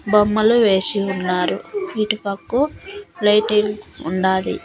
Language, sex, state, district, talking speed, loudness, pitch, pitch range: Telugu, female, Andhra Pradesh, Annamaya, 75 wpm, -19 LUFS, 210 Hz, 195-230 Hz